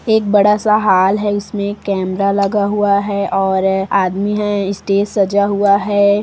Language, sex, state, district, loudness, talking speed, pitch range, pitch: Hindi, female, Chhattisgarh, Kabirdham, -15 LUFS, 165 wpm, 195-205 Hz, 200 Hz